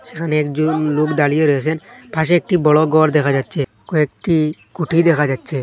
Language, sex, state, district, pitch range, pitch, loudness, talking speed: Bengali, male, Assam, Hailakandi, 150-165 Hz, 155 Hz, -17 LUFS, 160 wpm